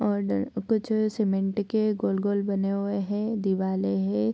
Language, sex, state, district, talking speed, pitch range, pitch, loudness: Hindi, female, Bihar, Bhagalpur, 140 wpm, 190-215 Hz, 200 Hz, -27 LUFS